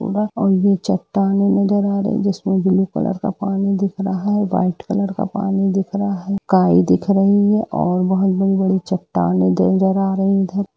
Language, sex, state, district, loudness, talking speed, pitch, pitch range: Hindi, female, Jharkhand, Jamtara, -17 LUFS, 190 wpm, 195 Hz, 190-200 Hz